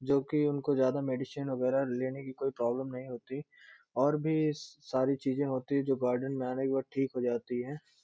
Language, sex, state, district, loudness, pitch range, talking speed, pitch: Hindi, male, Bihar, Gopalganj, -33 LUFS, 130-140 Hz, 215 wpm, 135 Hz